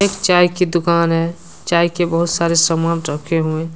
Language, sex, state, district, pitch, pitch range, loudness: Hindi, male, Jharkhand, Deoghar, 170 Hz, 165-175 Hz, -16 LUFS